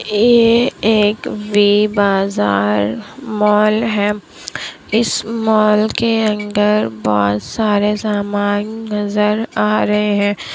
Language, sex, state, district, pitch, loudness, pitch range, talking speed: Hindi, female, Bihar, Kishanganj, 210 Hz, -15 LUFS, 205-220 Hz, 95 wpm